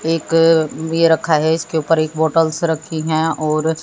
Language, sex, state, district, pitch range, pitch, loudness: Hindi, female, Haryana, Jhajjar, 155-165 Hz, 160 Hz, -16 LUFS